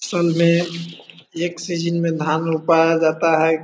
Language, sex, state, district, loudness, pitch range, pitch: Hindi, male, Bihar, East Champaran, -19 LUFS, 160-170 Hz, 165 Hz